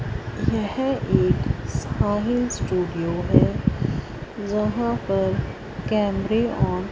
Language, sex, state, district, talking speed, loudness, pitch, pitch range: Hindi, female, Punjab, Fazilka, 85 wpm, -23 LUFS, 205 Hz, 175-220 Hz